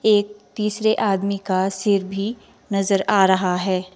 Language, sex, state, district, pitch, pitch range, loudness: Hindi, female, Himachal Pradesh, Shimla, 195 Hz, 190-210 Hz, -20 LUFS